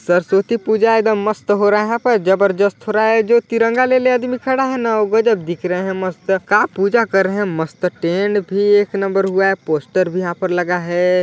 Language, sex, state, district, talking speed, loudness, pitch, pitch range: Hindi, male, Chhattisgarh, Balrampur, 235 wpm, -16 LUFS, 200 Hz, 185-225 Hz